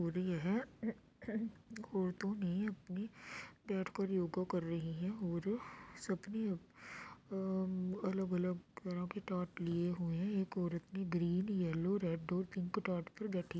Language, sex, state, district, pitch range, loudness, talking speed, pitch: Hindi, female, Bihar, Darbhanga, 175-200 Hz, -40 LUFS, 150 wpm, 185 Hz